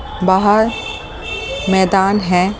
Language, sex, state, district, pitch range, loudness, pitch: Hindi, male, Delhi, New Delhi, 190-205 Hz, -15 LUFS, 190 Hz